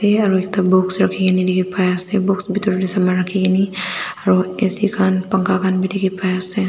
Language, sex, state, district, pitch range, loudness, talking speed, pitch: Nagamese, female, Nagaland, Dimapur, 185-195 Hz, -17 LUFS, 170 wpm, 190 Hz